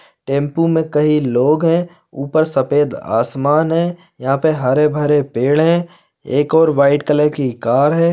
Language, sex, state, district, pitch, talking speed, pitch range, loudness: Hindi, male, Chhattisgarh, Bilaspur, 150 Hz, 155 wpm, 140-160 Hz, -15 LUFS